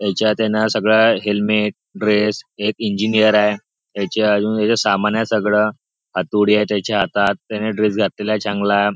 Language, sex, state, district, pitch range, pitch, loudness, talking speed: Marathi, male, Maharashtra, Nagpur, 105-110 Hz, 105 Hz, -17 LUFS, 155 wpm